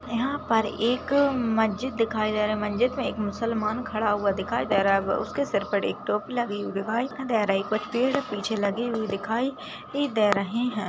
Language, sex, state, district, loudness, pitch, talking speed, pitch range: Hindi, female, Maharashtra, Nagpur, -26 LUFS, 220 Hz, 195 wpm, 205-245 Hz